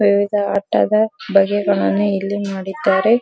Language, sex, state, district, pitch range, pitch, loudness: Kannada, female, Karnataka, Dharwad, 195-205 Hz, 200 Hz, -17 LUFS